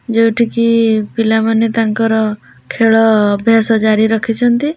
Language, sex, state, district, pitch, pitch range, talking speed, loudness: Odia, female, Odisha, Khordha, 225 Hz, 220-230 Hz, 125 wpm, -12 LUFS